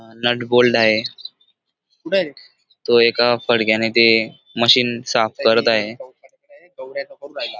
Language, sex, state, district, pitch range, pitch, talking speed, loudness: Marathi, male, Maharashtra, Dhule, 115-140 Hz, 120 Hz, 85 wpm, -16 LUFS